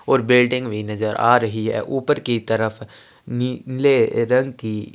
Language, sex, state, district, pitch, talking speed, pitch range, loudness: Hindi, male, Chhattisgarh, Kabirdham, 120 Hz, 160 wpm, 110-125 Hz, -19 LUFS